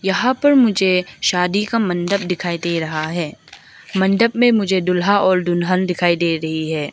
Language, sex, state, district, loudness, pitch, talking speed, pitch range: Hindi, female, Arunachal Pradesh, Lower Dibang Valley, -17 LUFS, 180 Hz, 175 wpm, 170-200 Hz